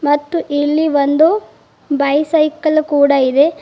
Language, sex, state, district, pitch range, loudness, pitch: Kannada, female, Karnataka, Bidar, 285-310 Hz, -14 LUFS, 295 Hz